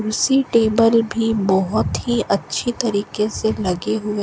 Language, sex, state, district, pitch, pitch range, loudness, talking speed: Hindi, female, Rajasthan, Bikaner, 220 Hz, 210-230 Hz, -19 LUFS, 140 wpm